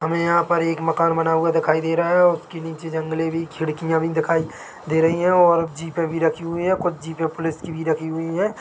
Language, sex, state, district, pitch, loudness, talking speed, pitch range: Hindi, male, Chhattisgarh, Bilaspur, 165 Hz, -21 LUFS, 250 wpm, 160-170 Hz